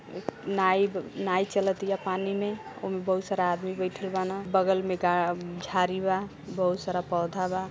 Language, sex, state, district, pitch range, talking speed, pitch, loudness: Bhojpuri, female, Uttar Pradesh, Gorakhpur, 180-195 Hz, 150 wpm, 185 Hz, -29 LUFS